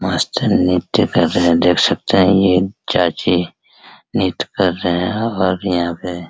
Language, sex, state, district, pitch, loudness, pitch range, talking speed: Hindi, male, Bihar, Araria, 90 Hz, -16 LUFS, 90-95 Hz, 170 wpm